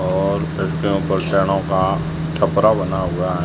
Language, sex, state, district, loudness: Hindi, male, Rajasthan, Jaisalmer, -19 LUFS